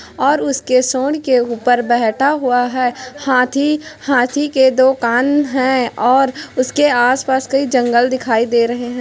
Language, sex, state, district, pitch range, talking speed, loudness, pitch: Hindi, female, Chhattisgarh, Korba, 245-275 Hz, 140 wpm, -15 LUFS, 255 Hz